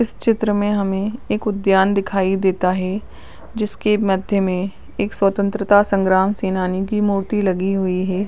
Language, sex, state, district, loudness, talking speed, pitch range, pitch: Hindi, female, Uttar Pradesh, Ghazipur, -19 LUFS, 150 wpm, 190-205 Hz, 195 Hz